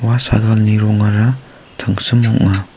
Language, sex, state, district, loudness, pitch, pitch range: Garo, male, Meghalaya, South Garo Hills, -14 LUFS, 110 Hz, 105-120 Hz